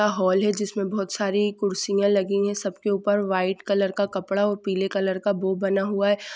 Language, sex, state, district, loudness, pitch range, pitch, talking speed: Hindi, female, Chhattisgarh, Rajnandgaon, -24 LUFS, 195-205 Hz, 200 Hz, 225 wpm